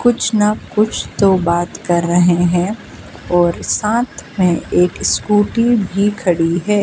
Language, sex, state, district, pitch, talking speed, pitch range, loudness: Hindi, female, Madhya Pradesh, Dhar, 195 Hz, 140 wpm, 175-210 Hz, -15 LUFS